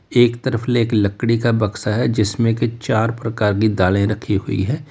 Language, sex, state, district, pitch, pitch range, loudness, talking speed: Hindi, male, Uttar Pradesh, Lalitpur, 115 Hz, 105-120 Hz, -18 LUFS, 195 wpm